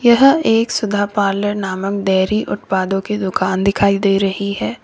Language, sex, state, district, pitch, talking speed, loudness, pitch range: Hindi, female, Uttar Pradesh, Lalitpur, 200 Hz, 160 wpm, -16 LUFS, 190-210 Hz